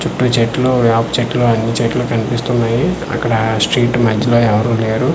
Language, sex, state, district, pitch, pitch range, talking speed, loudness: Telugu, male, Andhra Pradesh, Manyam, 120 Hz, 115-120 Hz, 150 wpm, -14 LUFS